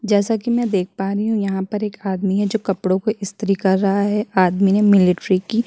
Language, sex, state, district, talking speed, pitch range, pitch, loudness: Hindi, female, Chhattisgarh, Kabirdham, 255 wpm, 190-210 Hz, 200 Hz, -18 LUFS